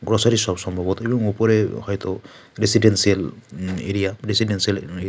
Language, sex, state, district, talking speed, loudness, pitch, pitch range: Bengali, male, West Bengal, Paschim Medinipur, 120 wpm, -20 LUFS, 100 Hz, 95-110 Hz